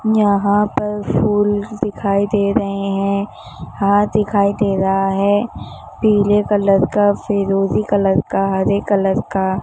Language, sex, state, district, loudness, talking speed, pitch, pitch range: Hindi, female, Maharashtra, Mumbai Suburban, -16 LUFS, 130 wpm, 200 Hz, 195-205 Hz